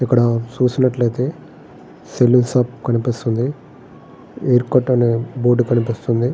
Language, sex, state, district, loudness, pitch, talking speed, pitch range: Telugu, male, Andhra Pradesh, Srikakulam, -17 LUFS, 120 Hz, 85 wpm, 120-125 Hz